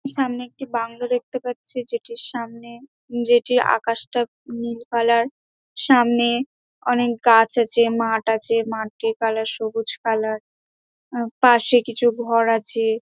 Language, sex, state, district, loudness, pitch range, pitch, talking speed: Bengali, female, West Bengal, Dakshin Dinajpur, -20 LUFS, 225-245 Hz, 235 Hz, 135 wpm